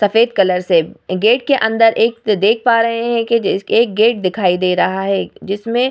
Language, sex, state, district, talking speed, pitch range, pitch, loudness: Hindi, female, Bihar, Vaishali, 195 wpm, 195-230 Hz, 220 Hz, -15 LUFS